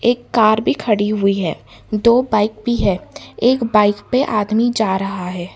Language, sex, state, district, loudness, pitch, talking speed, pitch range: Hindi, female, Karnataka, Bangalore, -17 LUFS, 215 Hz, 185 wpm, 205-235 Hz